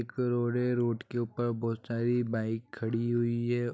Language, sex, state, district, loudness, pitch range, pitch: Hindi, male, Bihar, Gopalganj, -31 LUFS, 115-120 Hz, 120 Hz